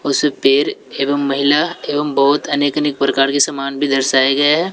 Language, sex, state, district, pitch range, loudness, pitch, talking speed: Hindi, male, Bihar, West Champaran, 135-145 Hz, -15 LUFS, 140 Hz, 190 wpm